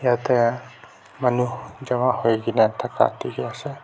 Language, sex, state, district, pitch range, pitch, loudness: Nagamese, male, Nagaland, Kohima, 115-125 Hz, 125 Hz, -22 LUFS